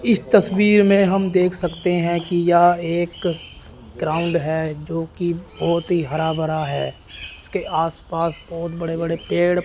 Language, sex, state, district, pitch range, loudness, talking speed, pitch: Hindi, male, Chandigarh, Chandigarh, 160-175 Hz, -20 LUFS, 160 wpm, 170 Hz